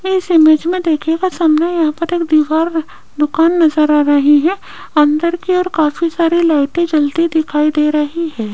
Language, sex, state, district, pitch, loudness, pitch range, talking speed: Hindi, female, Rajasthan, Jaipur, 320 Hz, -13 LUFS, 300-340 Hz, 175 wpm